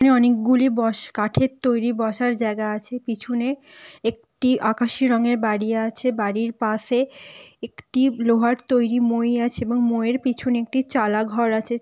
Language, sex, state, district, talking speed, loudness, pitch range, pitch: Bengali, female, West Bengal, Jalpaiguri, 135 wpm, -21 LUFS, 225-255 Hz, 235 Hz